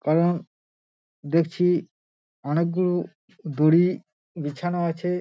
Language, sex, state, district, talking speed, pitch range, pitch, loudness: Bengali, male, West Bengal, Dakshin Dinajpur, 70 wpm, 155-180 Hz, 170 Hz, -24 LUFS